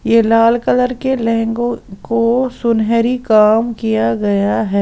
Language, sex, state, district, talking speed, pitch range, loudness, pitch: Hindi, female, Punjab, Pathankot, 135 wpm, 220-240 Hz, -14 LUFS, 230 Hz